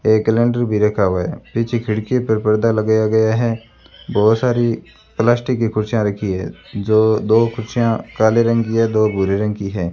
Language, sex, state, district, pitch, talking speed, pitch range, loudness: Hindi, male, Rajasthan, Bikaner, 110 Hz, 195 wpm, 105-115 Hz, -17 LUFS